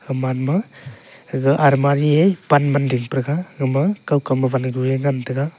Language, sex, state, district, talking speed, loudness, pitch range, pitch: Wancho, male, Arunachal Pradesh, Longding, 195 wpm, -19 LUFS, 130-145 Hz, 140 Hz